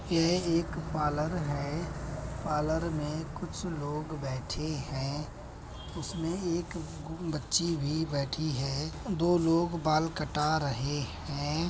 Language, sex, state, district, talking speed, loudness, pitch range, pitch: Hindi, male, Uttar Pradesh, Budaun, 115 wpm, -32 LUFS, 145-165 Hz, 155 Hz